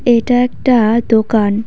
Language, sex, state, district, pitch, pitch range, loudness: Bengali, female, West Bengal, Cooch Behar, 230 Hz, 220-245 Hz, -13 LUFS